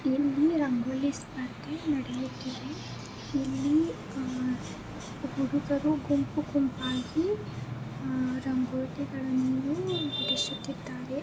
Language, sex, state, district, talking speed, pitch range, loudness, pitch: Kannada, female, Karnataka, Belgaum, 60 wpm, 255-285 Hz, -31 LUFS, 270 Hz